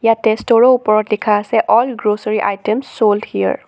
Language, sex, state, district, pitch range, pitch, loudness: Assamese, female, Assam, Sonitpur, 210-230 Hz, 215 Hz, -15 LUFS